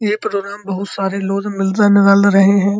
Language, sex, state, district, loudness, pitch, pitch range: Hindi, male, Uttar Pradesh, Muzaffarnagar, -14 LUFS, 200 Hz, 195-205 Hz